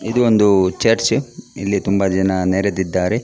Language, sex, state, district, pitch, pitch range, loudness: Kannada, male, Karnataka, Dakshina Kannada, 100 Hz, 95-110 Hz, -17 LUFS